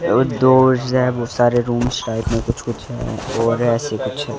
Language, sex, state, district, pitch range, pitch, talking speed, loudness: Hindi, male, Delhi, New Delhi, 115-130 Hz, 120 Hz, 165 wpm, -18 LUFS